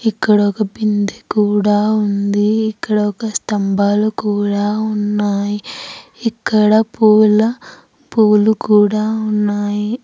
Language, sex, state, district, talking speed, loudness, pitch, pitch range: Telugu, female, Andhra Pradesh, Anantapur, 90 wpm, -15 LUFS, 210 Hz, 205-220 Hz